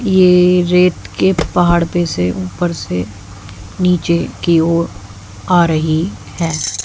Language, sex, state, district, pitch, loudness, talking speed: Hindi, female, Haryana, Jhajjar, 165 Hz, -14 LUFS, 125 wpm